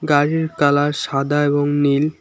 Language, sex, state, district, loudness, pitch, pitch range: Bengali, male, West Bengal, Alipurduar, -18 LUFS, 145 Hz, 145-150 Hz